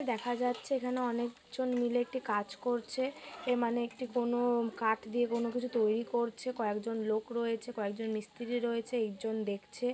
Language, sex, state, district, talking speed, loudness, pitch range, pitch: Bengali, female, West Bengal, Purulia, 165 wpm, -34 LUFS, 225-245 Hz, 235 Hz